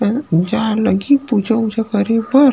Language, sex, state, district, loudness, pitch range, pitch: Chhattisgarhi, male, Chhattisgarh, Rajnandgaon, -16 LUFS, 210-240 Hz, 225 Hz